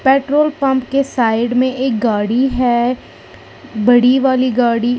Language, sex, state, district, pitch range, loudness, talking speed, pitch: Hindi, female, Uttar Pradesh, Lalitpur, 240-265 Hz, -14 LUFS, 130 wpm, 255 Hz